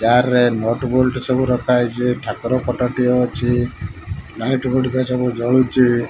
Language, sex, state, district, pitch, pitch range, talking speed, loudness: Odia, male, Odisha, Malkangiri, 125 Hz, 120-130 Hz, 150 wpm, -18 LUFS